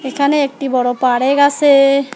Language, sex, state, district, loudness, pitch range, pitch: Bengali, female, West Bengal, Alipurduar, -13 LUFS, 260-285 Hz, 275 Hz